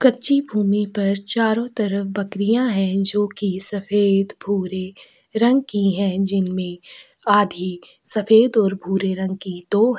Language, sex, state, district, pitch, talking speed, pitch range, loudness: Hindi, female, Chhattisgarh, Sukma, 200 Hz, 140 wpm, 195-215 Hz, -20 LUFS